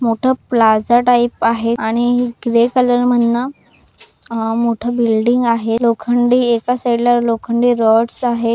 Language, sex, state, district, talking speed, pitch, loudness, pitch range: Marathi, female, Maharashtra, Nagpur, 135 wpm, 235 Hz, -15 LUFS, 230-245 Hz